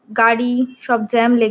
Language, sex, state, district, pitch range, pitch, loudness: Bengali, female, West Bengal, Dakshin Dinajpur, 230-245 Hz, 235 Hz, -16 LUFS